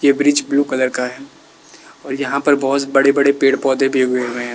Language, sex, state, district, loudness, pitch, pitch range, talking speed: Hindi, male, Uttar Pradesh, Lalitpur, -16 LUFS, 135 Hz, 130-140 Hz, 235 wpm